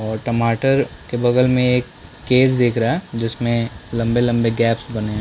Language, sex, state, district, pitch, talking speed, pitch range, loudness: Hindi, male, Chhattisgarh, Bastar, 120 Hz, 175 wpm, 115-125 Hz, -18 LUFS